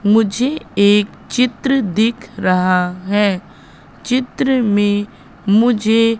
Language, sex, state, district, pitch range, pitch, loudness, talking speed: Hindi, female, Madhya Pradesh, Katni, 205-245 Hz, 215 Hz, -16 LUFS, 85 wpm